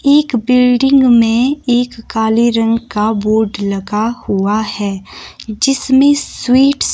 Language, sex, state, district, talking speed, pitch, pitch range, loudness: Hindi, female, Himachal Pradesh, Shimla, 120 wpm, 230 Hz, 215-260 Hz, -13 LUFS